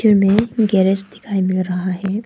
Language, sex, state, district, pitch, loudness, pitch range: Hindi, female, Arunachal Pradesh, Papum Pare, 195 Hz, -17 LUFS, 190-210 Hz